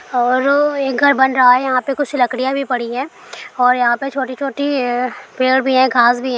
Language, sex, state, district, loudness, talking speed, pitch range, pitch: Hindi, female, Bihar, Araria, -15 LUFS, 225 wpm, 250-275 Hz, 260 Hz